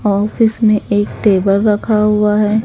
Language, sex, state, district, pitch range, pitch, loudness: Hindi, female, Haryana, Charkhi Dadri, 205-215 Hz, 210 Hz, -13 LUFS